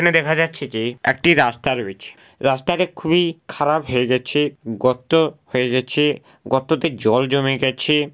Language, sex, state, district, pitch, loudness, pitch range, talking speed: Bengali, male, West Bengal, Jhargram, 145 Hz, -19 LUFS, 130-160 Hz, 140 wpm